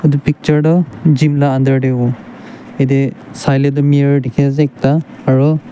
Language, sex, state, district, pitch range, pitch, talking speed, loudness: Nagamese, male, Nagaland, Dimapur, 135-150 Hz, 145 Hz, 180 wpm, -13 LUFS